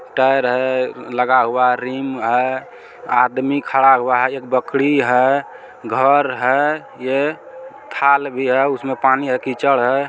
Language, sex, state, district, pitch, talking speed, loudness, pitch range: Maithili, male, Bihar, Supaul, 130 Hz, 145 wpm, -17 LUFS, 125-140 Hz